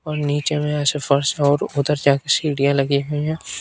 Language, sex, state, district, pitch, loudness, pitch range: Hindi, male, Bihar, Kaimur, 145 Hz, -19 LUFS, 140-150 Hz